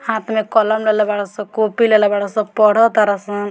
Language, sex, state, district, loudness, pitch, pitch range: Bhojpuri, female, Bihar, Muzaffarpur, -16 LUFS, 215 Hz, 205-220 Hz